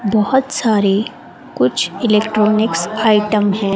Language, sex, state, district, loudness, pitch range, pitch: Hindi, female, Rajasthan, Bikaner, -15 LUFS, 205-220 Hz, 215 Hz